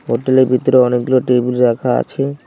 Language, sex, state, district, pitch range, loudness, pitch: Bengali, male, West Bengal, Cooch Behar, 125-130 Hz, -14 LUFS, 125 Hz